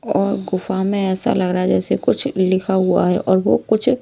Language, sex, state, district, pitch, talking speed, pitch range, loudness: Hindi, female, Maharashtra, Mumbai Suburban, 190 Hz, 225 wpm, 185-215 Hz, -18 LUFS